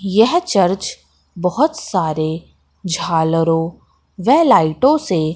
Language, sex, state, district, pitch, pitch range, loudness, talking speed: Hindi, female, Madhya Pradesh, Katni, 180 Hz, 165-225 Hz, -16 LUFS, 90 wpm